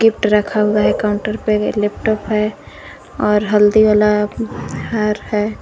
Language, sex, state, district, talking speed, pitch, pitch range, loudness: Hindi, female, Jharkhand, Garhwa, 140 wpm, 210 Hz, 210-215 Hz, -16 LUFS